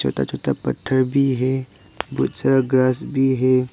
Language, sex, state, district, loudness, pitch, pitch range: Hindi, male, Arunachal Pradesh, Lower Dibang Valley, -20 LUFS, 130 Hz, 125-130 Hz